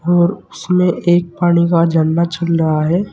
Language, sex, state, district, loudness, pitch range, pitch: Hindi, male, Uttar Pradesh, Saharanpur, -15 LUFS, 165-175 Hz, 170 Hz